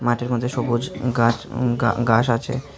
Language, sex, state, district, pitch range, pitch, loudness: Bengali, male, Tripura, Unakoti, 120-125 Hz, 120 Hz, -21 LUFS